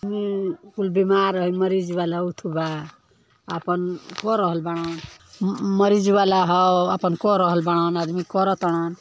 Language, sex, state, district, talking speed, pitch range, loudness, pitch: Bhojpuri, female, Uttar Pradesh, Ghazipur, 140 wpm, 170-195 Hz, -22 LUFS, 180 Hz